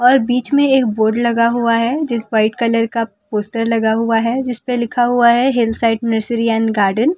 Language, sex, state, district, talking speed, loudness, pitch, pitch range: Hindi, female, Delhi, New Delhi, 240 wpm, -16 LUFS, 230 Hz, 225-245 Hz